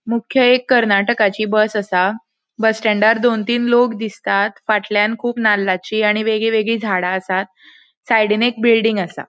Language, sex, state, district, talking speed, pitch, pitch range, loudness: Konkani, female, Goa, North and South Goa, 150 wpm, 215 Hz, 205-230 Hz, -16 LUFS